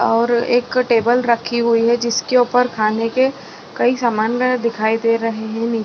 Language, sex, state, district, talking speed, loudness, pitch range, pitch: Hindi, female, Chhattisgarh, Bilaspur, 175 wpm, -17 LUFS, 230-245 Hz, 235 Hz